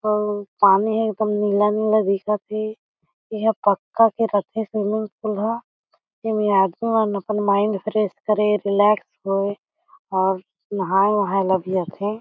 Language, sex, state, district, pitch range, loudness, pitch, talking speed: Chhattisgarhi, female, Chhattisgarh, Jashpur, 200-215 Hz, -21 LUFS, 210 Hz, 140 wpm